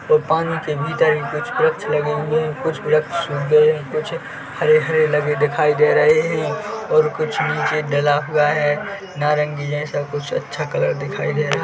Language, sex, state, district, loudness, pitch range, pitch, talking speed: Hindi, male, Chhattisgarh, Bilaspur, -19 LUFS, 150-160 Hz, 150 Hz, 190 wpm